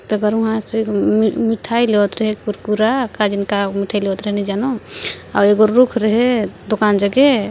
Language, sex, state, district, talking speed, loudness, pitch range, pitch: Hindi, female, Chhattisgarh, Balrampur, 135 wpm, -16 LUFS, 205-225 Hz, 215 Hz